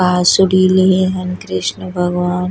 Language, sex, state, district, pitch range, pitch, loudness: Bhojpuri, female, Uttar Pradesh, Deoria, 180-185 Hz, 180 Hz, -14 LUFS